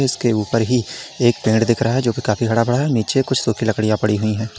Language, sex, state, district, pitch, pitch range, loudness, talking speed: Hindi, male, Uttar Pradesh, Lalitpur, 115 Hz, 110-125 Hz, -18 LUFS, 260 wpm